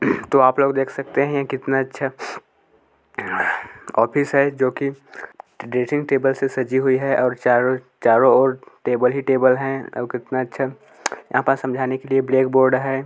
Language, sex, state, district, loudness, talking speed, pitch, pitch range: Hindi, male, Chhattisgarh, Korba, -20 LUFS, 160 wpm, 130 Hz, 130-135 Hz